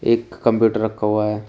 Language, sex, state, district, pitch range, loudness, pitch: Hindi, male, Uttar Pradesh, Shamli, 105-115 Hz, -19 LUFS, 110 Hz